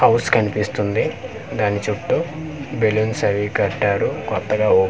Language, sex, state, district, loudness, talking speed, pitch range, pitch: Telugu, male, Andhra Pradesh, Manyam, -20 LUFS, 110 wpm, 105-115 Hz, 110 Hz